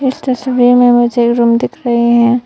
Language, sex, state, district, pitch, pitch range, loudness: Hindi, female, Arunachal Pradesh, Papum Pare, 240 Hz, 235-250 Hz, -11 LUFS